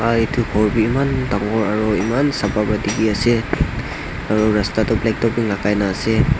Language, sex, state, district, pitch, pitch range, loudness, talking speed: Nagamese, male, Nagaland, Dimapur, 110 Hz, 105-115 Hz, -18 LUFS, 180 wpm